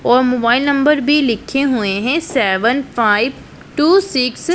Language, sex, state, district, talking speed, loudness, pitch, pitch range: Hindi, female, Punjab, Pathankot, 160 wpm, -15 LUFS, 260 Hz, 235-290 Hz